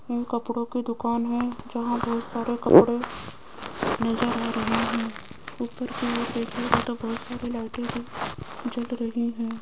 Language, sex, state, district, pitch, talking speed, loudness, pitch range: Hindi, female, Rajasthan, Jaipur, 235 Hz, 110 wpm, -26 LUFS, 235-240 Hz